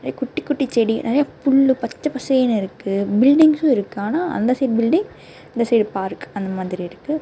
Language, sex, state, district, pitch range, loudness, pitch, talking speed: Tamil, female, Karnataka, Bangalore, 210-285 Hz, -19 LUFS, 250 Hz, 175 wpm